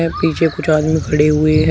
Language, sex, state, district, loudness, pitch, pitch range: Hindi, male, Uttar Pradesh, Shamli, -15 LUFS, 155 Hz, 150-160 Hz